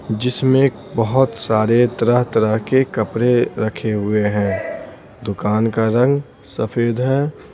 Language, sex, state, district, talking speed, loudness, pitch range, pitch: Hindi, male, Bihar, Patna, 110 wpm, -18 LUFS, 110-125 Hz, 115 Hz